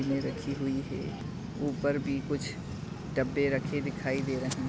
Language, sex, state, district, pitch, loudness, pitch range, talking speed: Hindi, female, Maharashtra, Nagpur, 135 Hz, -33 LUFS, 135-145 Hz, 155 wpm